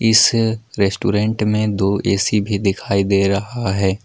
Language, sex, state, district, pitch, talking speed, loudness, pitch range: Hindi, male, Jharkhand, Palamu, 105 Hz, 150 wpm, -17 LUFS, 100-110 Hz